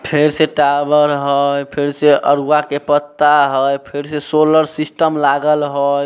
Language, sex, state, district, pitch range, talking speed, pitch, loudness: Maithili, male, Bihar, Samastipur, 140-150 Hz, 150 wpm, 145 Hz, -14 LUFS